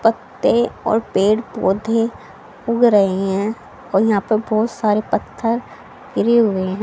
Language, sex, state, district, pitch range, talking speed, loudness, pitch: Hindi, female, Haryana, Charkhi Dadri, 205-230 Hz, 140 wpm, -18 LUFS, 220 Hz